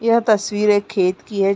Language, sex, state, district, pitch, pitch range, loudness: Hindi, female, Chhattisgarh, Raigarh, 205 Hz, 195-215 Hz, -18 LUFS